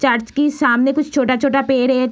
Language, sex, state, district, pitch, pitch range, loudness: Hindi, female, Bihar, Madhepura, 270 Hz, 255-280 Hz, -16 LUFS